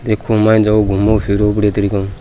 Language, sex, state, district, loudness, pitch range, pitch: Rajasthani, male, Rajasthan, Churu, -14 LUFS, 100-110 Hz, 105 Hz